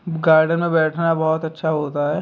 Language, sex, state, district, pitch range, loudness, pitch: Hindi, male, Bihar, Begusarai, 155-165 Hz, -19 LUFS, 160 Hz